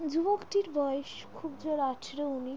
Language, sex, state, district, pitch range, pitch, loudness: Bengali, female, West Bengal, Jalpaiguri, 275-320 Hz, 290 Hz, -33 LUFS